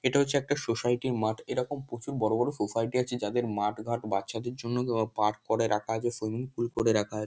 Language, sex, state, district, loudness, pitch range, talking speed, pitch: Bengali, male, West Bengal, North 24 Parganas, -30 LUFS, 110-125 Hz, 205 wpm, 115 Hz